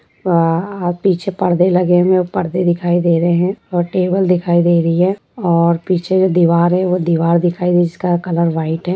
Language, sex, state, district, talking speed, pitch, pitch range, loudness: Hindi, female, Bihar, Sitamarhi, 205 wpm, 175 Hz, 170-185 Hz, -15 LUFS